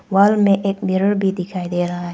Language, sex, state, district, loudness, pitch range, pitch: Hindi, female, Arunachal Pradesh, Papum Pare, -18 LUFS, 180-200 Hz, 195 Hz